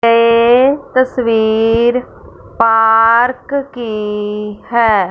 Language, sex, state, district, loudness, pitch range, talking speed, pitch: Hindi, female, Punjab, Fazilka, -13 LUFS, 220-245 Hz, 60 wpm, 230 Hz